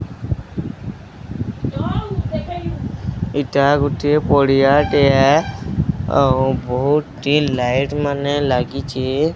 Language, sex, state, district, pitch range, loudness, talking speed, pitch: Odia, male, Odisha, Sambalpur, 130-145 Hz, -18 LUFS, 65 wpm, 140 Hz